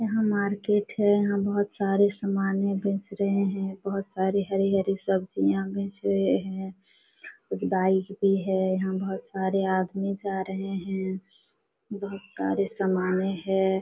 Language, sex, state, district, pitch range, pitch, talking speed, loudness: Hindi, female, Jharkhand, Sahebganj, 190-200 Hz, 195 Hz, 140 wpm, -27 LUFS